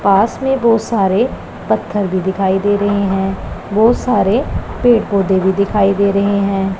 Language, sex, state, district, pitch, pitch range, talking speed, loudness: Hindi, female, Punjab, Pathankot, 200 Hz, 195-215 Hz, 170 wpm, -15 LUFS